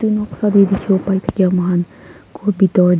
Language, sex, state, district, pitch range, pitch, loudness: Nagamese, female, Nagaland, Kohima, 185-210 Hz, 195 Hz, -16 LUFS